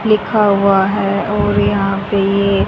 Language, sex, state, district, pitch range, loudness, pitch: Hindi, female, Haryana, Charkhi Dadri, 195-205 Hz, -14 LUFS, 200 Hz